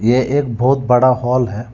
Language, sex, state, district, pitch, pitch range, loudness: Hindi, male, Telangana, Hyderabad, 125 Hz, 120-130 Hz, -15 LUFS